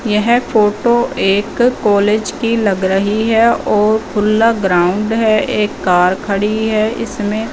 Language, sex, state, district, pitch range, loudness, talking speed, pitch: Hindi, female, Punjab, Fazilka, 205-225 Hz, -14 LUFS, 135 wpm, 215 Hz